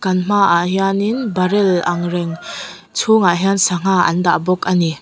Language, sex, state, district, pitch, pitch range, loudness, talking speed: Mizo, female, Mizoram, Aizawl, 185 Hz, 175-195 Hz, -16 LUFS, 165 wpm